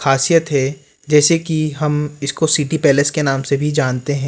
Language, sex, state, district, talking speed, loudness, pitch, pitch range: Hindi, male, Rajasthan, Jaipur, 180 wpm, -16 LUFS, 150 Hz, 140-155 Hz